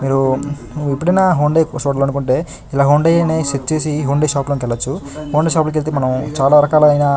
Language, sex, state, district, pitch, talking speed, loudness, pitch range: Telugu, male, Andhra Pradesh, Chittoor, 145 Hz, 175 wpm, -15 LUFS, 140-155 Hz